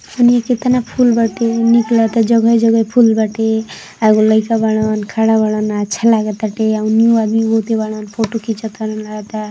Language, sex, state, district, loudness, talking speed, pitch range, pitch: Hindi, female, Uttar Pradesh, Ghazipur, -14 LUFS, 160 wpm, 215-230 Hz, 225 Hz